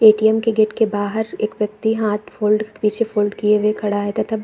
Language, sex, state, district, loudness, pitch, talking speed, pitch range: Hindi, female, Bihar, Saran, -19 LUFS, 215 Hz, 230 wpm, 210-220 Hz